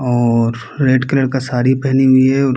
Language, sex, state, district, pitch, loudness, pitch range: Hindi, male, Bihar, Kishanganj, 130 Hz, -14 LUFS, 125-135 Hz